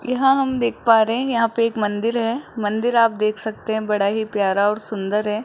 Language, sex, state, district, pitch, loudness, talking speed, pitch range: Hindi, male, Rajasthan, Jaipur, 220 Hz, -20 LUFS, 240 wpm, 210-235 Hz